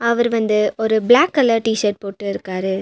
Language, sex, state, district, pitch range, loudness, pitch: Tamil, female, Tamil Nadu, Nilgiris, 200-235 Hz, -17 LUFS, 220 Hz